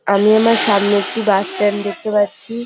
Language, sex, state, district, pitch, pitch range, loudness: Bengali, female, West Bengal, North 24 Parganas, 205 Hz, 200-220 Hz, -15 LUFS